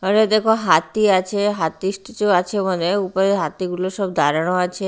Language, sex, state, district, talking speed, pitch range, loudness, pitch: Bengali, female, Odisha, Nuapada, 160 wpm, 180-205 Hz, -19 LUFS, 190 Hz